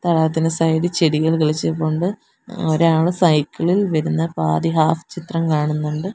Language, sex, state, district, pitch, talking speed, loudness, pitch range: Malayalam, female, Kerala, Kollam, 160 Hz, 115 wpm, -18 LUFS, 155-170 Hz